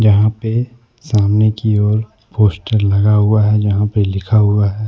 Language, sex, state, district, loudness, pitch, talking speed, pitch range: Hindi, male, Jharkhand, Deoghar, -14 LUFS, 105 Hz, 170 wpm, 105-110 Hz